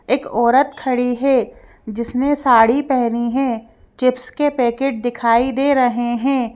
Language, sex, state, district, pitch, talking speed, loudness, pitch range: Hindi, female, Madhya Pradesh, Bhopal, 250 Hz, 135 wpm, -17 LUFS, 235-270 Hz